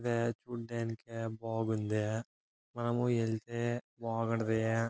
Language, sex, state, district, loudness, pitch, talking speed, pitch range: Telugu, male, Andhra Pradesh, Anantapur, -35 LUFS, 115 Hz, 50 wpm, 110-120 Hz